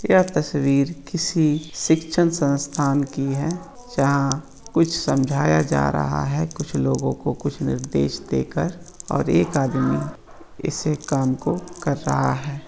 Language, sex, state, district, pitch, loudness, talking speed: Hindi, male, Uttar Pradesh, Varanasi, 140 Hz, -22 LUFS, 130 wpm